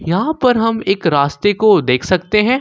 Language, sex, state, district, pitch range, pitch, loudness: Hindi, male, Jharkhand, Ranchi, 165-225 Hz, 205 Hz, -14 LUFS